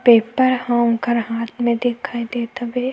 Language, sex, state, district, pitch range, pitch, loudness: Chhattisgarhi, female, Chhattisgarh, Sukma, 235-250 Hz, 240 Hz, -19 LUFS